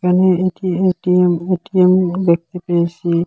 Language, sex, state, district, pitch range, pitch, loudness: Bengali, male, Assam, Hailakandi, 175-185 Hz, 180 Hz, -16 LUFS